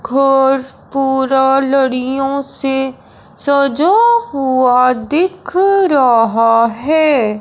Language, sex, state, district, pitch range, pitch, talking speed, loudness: Hindi, male, Punjab, Fazilka, 255-285 Hz, 270 Hz, 75 wpm, -13 LUFS